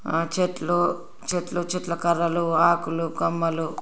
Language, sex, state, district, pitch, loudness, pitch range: Telugu, female, Andhra Pradesh, Srikakulam, 170 Hz, -24 LUFS, 165-175 Hz